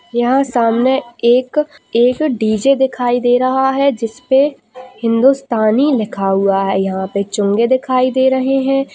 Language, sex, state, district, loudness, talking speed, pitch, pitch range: Hindi, female, Chhattisgarh, Jashpur, -14 LUFS, 145 wpm, 250 Hz, 230-270 Hz